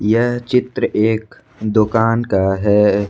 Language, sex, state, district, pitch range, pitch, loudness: Hindi, male, Jharkhand, Ranchi, 105-115 Hz, 110 Hz, -16 LUFS